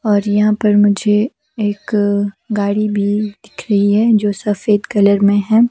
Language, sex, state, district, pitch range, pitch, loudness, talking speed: Hindi, female, Himachal Pradesh, Shimla, 205-215 Hz, 205 Hz, -15 LUFS, 155 wpm